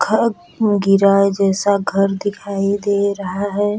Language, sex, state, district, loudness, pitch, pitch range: Bhojpuri, female, Uttar Pradesh, Deoria, -17 LUFS, 200 Hz, 195-205 Hz